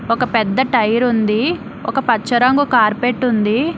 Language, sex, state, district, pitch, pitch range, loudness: Telugu, female, Telangana, Hyderabad, 245 Hz, 225-260 Hz, -16 LUFS